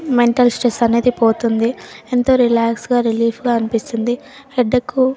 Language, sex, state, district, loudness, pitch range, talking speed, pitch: Telugu, female, Telangana, Nalgonda, -16 LUFS, 230-250 Hz, 140 wpm, 240 Hz